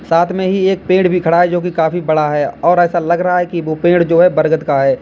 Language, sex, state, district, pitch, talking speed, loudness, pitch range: Hindi, male, Uttar Pradesh, Lalitpur, 175 Hz, 310 wpm, -13 LUFS, 160-180 Hz